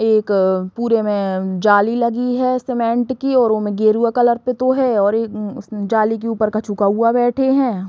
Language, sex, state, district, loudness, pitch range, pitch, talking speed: Bundeli, female, Uttar Pradesh, Hamirpur, -17 LUFS, 210-245 Hz, 225 Hz, 180 wpm